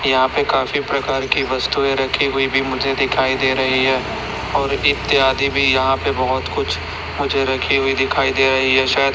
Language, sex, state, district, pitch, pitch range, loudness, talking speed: Hindi, male, Chhattisgarh, Raipur, 135 Hz, 130-135 Hz, -17 LUFS, 195 wpm